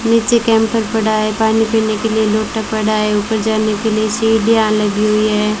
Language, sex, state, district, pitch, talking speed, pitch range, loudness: Hindi, female, Rajasthan, Bikaner, 220 Hz, 205 wpm, 215-225 Hz, -14 LUFS